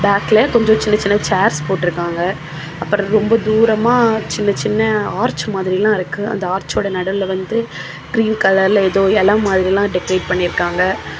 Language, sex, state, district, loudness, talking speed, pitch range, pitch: Tamil, female, Tamil Nadu, Kanyakumari, -16 LUFS, 135 wpm, 185-215 Hz, 200 Hz